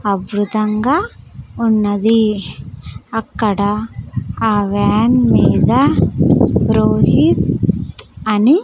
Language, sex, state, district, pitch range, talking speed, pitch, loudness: Telugu, female, Andhra Pradesh, Sri Satya Sai, 205-225 Hz, 55 wpm, 215 Hz, -15 LUFS